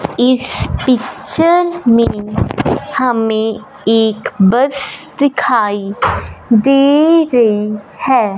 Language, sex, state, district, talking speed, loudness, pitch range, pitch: Hindi, female, Punjab, Fazilka, 70 wpm, -13 LUFS, 215-275 Hz, 245 Hz